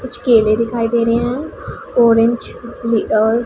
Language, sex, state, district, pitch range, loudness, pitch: Hindi, female, Punjab, Pathankot, 230-240 Hz, -15 LUFS, 235 Hz